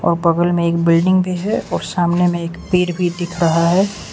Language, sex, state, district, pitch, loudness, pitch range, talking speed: Hindi, male, Arunachal Pradesh, Lower Dibang Valley, 175 Hz, -17 LUFS, 170-180 Hz, 230 wpm